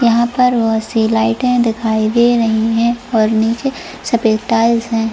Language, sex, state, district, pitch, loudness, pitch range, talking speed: Hindi, female, Jharkhand, Jamtara, 230 Hz, -14 LUFS, 225-235 Hz, 165 wpm